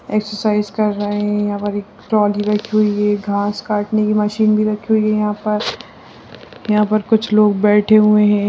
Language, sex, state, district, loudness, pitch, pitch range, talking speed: Hindi, female, Bihar, Jahanabad, -16 LUFS, 210 Hz, 205-215 Hz, 190 wpm